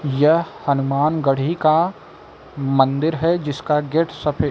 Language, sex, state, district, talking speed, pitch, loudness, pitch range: Hindi, male, Uttar Pradesh, Lucknow, 105 wpm, 150 Hz, -19 LUFS, 140-160 Hz